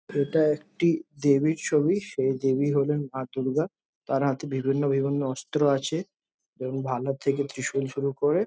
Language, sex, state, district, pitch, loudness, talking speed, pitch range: Bengali, male, West Bengal, Jhargram, 140 Hz, -26 LUFS, 150 wpm, 135-150 Hz